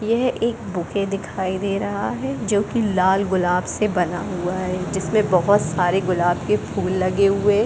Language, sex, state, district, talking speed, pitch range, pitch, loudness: Hindi, female, Bihar, Gopalganj, 190 wpm, 185-205 Hz, 195 Hz, -21 LUFS